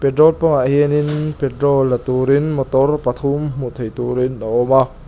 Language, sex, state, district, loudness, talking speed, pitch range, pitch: Mizo, male, Mizoram, Aizawl, -17 LUFS, 165 wpm, 125-145 Hz, 135 Hz